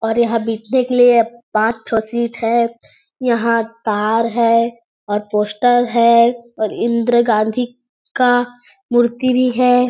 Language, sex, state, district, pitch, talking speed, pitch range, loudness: Hindi, female, Chhattisgarh, Sarguja, 235 Hz, 135 wpm, 225-245 Hz, -16 LUFS